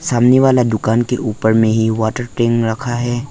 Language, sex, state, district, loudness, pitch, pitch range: Hindi, male, Arunachal Pradesh, Lower Dibang Valley, -15 LUFS, 120 Hz, 110-125 Hz